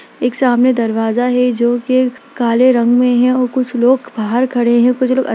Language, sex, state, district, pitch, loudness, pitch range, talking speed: Hindi, female, Bihar, Darbhanga, 245 Hz, -14 LUFS, 240-255 Hz, 225 wpm